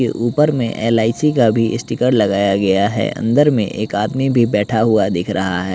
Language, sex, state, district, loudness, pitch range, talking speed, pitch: Hindi, male, Bihar, West Champaran, -16 LUFS, 100-120 Hz, 210 wpm, 115 Hz